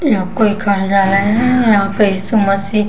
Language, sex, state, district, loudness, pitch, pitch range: Hindi, female, Bihar, West Champaran, -13 LUFS, 205 Hz, 195-220 Hz